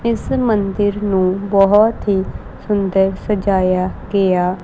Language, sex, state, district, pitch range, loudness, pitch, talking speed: Punjabi, female, Punjab, Kapurthala, 190-205 Hz, -16 LUFS, 200 Hz, 105 wpm